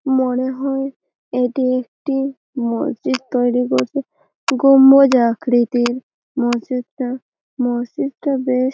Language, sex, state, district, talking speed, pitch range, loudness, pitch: Bengali, female, West Bengal, Malda, 90 wpm, 245-270 Hz, -18 LUFS, 255 Hz